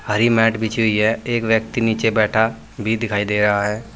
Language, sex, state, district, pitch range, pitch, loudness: Hindi, male, Uttar Pradesh, Saharanpur, 105-115 Hz, 110 Hz, -18 LUFS